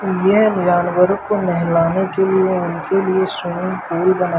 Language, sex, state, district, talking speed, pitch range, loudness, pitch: Hindi, male, Madhya Pradesh, Umaria, 150 wpm, 175-190 Hz, -17 LUFS, 185 Hz